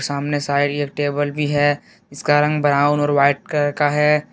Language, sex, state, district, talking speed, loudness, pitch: Hindi, male, Jharkhand, Deoghar, 180 wpm, -18 LUFS, 145 Hz